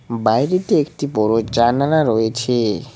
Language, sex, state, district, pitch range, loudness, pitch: Bengali, male, West Bengal, Cooch Behar, 110-140 Hz, -17 LUFS, 120 Hz